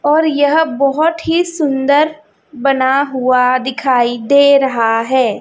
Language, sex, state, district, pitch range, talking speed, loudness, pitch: Hindi, female, Chhattisgarh, Raipur, 255-300 Hz, 120 wpm, -13 LUFS, 275 Hz